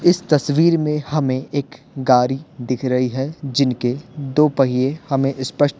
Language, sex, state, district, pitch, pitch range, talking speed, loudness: Hindi, male, Bihar, Patna, 135 Hz, 130-150 Hz, 145 wpm, -19 LUFS